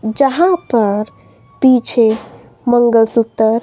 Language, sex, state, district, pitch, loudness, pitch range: Hindi, female, Himachal Pradesh, Shimla, 230 Hz, -14 LUFS, 220-255 Hz